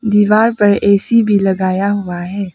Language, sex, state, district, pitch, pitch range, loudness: Hindi, female, Arunachal Pradesh, Papum Pare, 200 Hz, 190-210 Hz, -13 LUFS